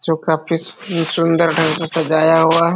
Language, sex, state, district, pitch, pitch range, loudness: Hindi, male, Jharkhand, Sahebganj, 165 Hz, 160-170 Hz, -15 LUFS